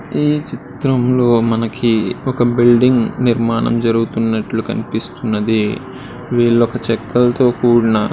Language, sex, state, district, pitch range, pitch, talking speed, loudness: Telugu, male, Andhra Pradesh, Srikakulam, 115-125 Hz, 120 Hz, 90 wpm, -15 LUFS